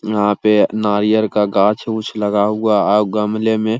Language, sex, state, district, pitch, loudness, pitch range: Hindi, male, Uttar Pradesh, Hamirpur, 105 Hz, -16 LUFS, 105-110 Hz